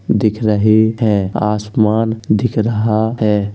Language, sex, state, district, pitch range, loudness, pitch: Hindi, male, Uttar Pradesh, Jalaun, 105-110 Hz, -15 LUFS, 110 Hz